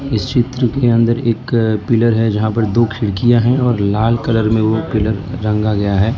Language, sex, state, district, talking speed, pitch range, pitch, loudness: Hindi, male, Gujarat, Valsad, 205 wpm, 110-120 Hz, 115 Hz, -15 LUFS